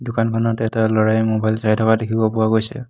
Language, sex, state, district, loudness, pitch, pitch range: Assamese, male, Assam, Hailakandi, -18 LUFS, 110 Hz, 110-115 Hz